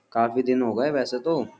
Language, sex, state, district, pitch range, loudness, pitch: Hindi, male, Uttar Pradesh, Jyotiba Phule Nagar, 120-135 Hz, -24 LUFS, 125 Hz